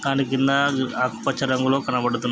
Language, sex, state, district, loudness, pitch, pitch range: Telugu, male, Andhra Pradesh, Krishna, -22 LUFS, 130 Hz, 125-135 Hz